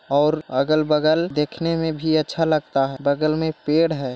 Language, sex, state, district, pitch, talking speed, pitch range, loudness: Hindi, male, Bihar, Jahanabad, 155 Hz, 175 wpm, 140-160 Hz, -21 LUFS